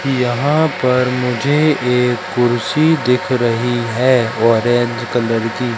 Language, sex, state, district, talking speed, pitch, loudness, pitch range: Hindi, male, Madhya Pradesh, Katni, 115 wpm, 125 Hz, -15 LUFS, 120-130 Hz